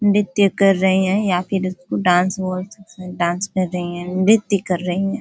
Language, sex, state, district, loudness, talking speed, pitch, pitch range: Hindi, female, Uttar Pradesh, Ghazipur, -19 LUFS, 220 wpm, 190 Hz, 180-200 Hz